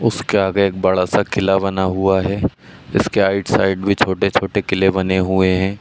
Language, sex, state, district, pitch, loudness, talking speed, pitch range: Hindi, male, Uttar Pradesh, Ghazipur, 95 Hz, -17 LUFS, 185 wpm, 95-100 Hz